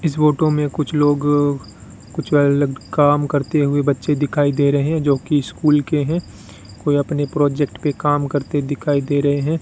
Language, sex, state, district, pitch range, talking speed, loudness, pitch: Hindi, male, Rajasthan, Bikaner, 140-150 Hz, 185 wpm, -18 LUFS, 145 Hz